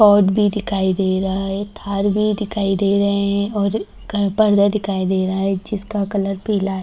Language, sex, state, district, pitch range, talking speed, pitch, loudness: Hindi, female, Bihar, Darbhanga, 195-205 Hz, 195 wpm, 200 Hz, -19 LUFS